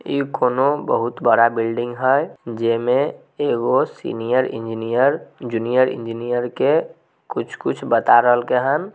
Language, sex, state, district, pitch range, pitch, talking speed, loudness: Maithili, male, Bihar, Samastipur, 115-130 Hz, 120 Hz, 125 wpm, -19 LUFS